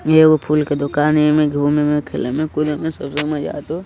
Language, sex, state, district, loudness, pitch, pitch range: Hindi, female, Bihar, Sitamarhi, -17 LUFS, 150 Hz, 145-155 Hz